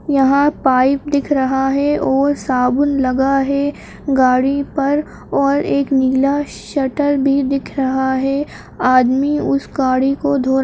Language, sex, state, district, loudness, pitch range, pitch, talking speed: Kumaoni, female, Uttarakhand, Uttarkashi, -16 LUFS, 265-285 Hz, 275 Hz, 140 wpm